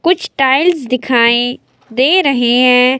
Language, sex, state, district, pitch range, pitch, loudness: Hindi, female, Himachal Pradesh, Shimla, 250-290 Hz, 255 Hz, -11 LUFS